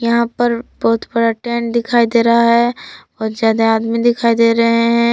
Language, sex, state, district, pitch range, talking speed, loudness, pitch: Hindi, female, Jharkhand, Palamu, 230-235 Hz, 185 wpm, -14 LUFS, 235 Hz